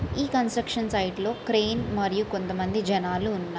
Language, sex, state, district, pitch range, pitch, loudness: Telugu, female, Andhra Pradesh, Srikakulam, 190-225 Hz, 210 Hz, -27 LUFS